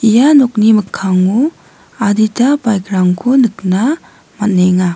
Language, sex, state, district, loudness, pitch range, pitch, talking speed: Garo, female, Meghalaya, West Garo Hills, -12 LUFS, 190-250 Hz, 215 Hz, 85 wpm